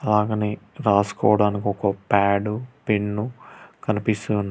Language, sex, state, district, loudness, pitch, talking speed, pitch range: Telugu, male, Telangana, Hyderabad, -23 LUFS, 105 Hz, 80 wpm, 100-110 Hz